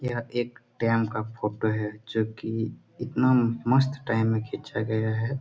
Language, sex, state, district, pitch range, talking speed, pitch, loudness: Hindi, male, Bihar, Jamui, 110-120 Hz, 165 wpm, 115 Hz, -27 LUFS